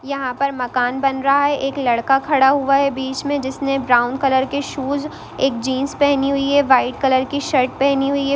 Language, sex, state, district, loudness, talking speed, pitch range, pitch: Hindi, female, Bihar, East Champaran, -18 LUFS, 215 wpm, 260-280 Hz, 275 Hz